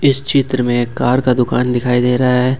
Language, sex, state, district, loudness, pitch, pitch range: Hindi, male, Jharkhand, Ranchi, -15 LUFS, 125 Hz, 125-130 Hz